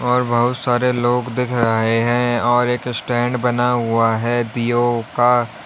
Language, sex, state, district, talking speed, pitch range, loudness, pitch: Hindi, male, Uttar Pradesh, Lalitpur, 160 wpm, 120-125 Hz, -18 LUFS, 120 Hz